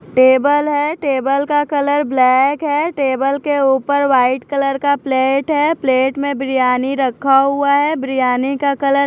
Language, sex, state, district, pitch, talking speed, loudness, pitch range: Hindi, female, Chhattisgarh, Raipur, 275 Hz, 165 wpm, -15 LUFS, 265-285 Hz